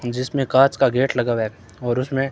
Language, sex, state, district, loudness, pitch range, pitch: Hindi, male, Rajasthan, Bikaner, -20 LUFS, 120-135 Hz, 125 Hz